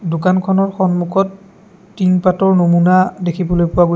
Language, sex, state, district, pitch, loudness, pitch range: Assamese, male, Assam, Sonitpur, 185 Hz, -14 LUFS, 175-190 Hz